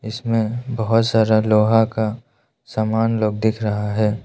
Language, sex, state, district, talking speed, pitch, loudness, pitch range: Hindi, male, Arunachal Pradesh, Lower Dibang Valley, 140 wpm, 110 Hz, -19 LUFS, 110-115 Hz